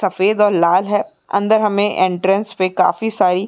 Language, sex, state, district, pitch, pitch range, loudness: Hindi, female, Uttar Pradesh, Muzaffarnagar, 200 Hz, 185-210 Hz, -16 LUFS